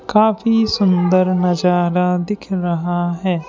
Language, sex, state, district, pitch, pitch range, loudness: Hindi, male, Madhya Pradesh, Bhopal, 180 Hz, 175-200 Hz, -17 LUFS